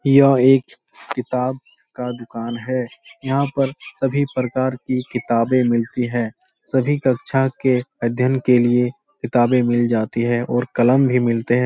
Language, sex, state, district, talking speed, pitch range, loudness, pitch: Hindi, male, Bihar, Supaul, 150 wpm, 120-135 Hz, -19 LUFS, 125 Hz